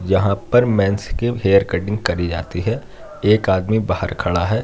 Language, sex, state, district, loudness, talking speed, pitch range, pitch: Hindi, male, Uttar Pradesh, Jyotiba Phule Nagar, -18 LUFS, 180 wpm, 90-110 Hz, 100 Hz